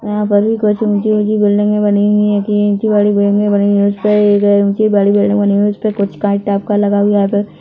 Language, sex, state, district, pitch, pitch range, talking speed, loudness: Hindi, male, Chhattisgarh, Korba, 205 Hz, 205-210 Hz, 155 wpm, -13 LUFS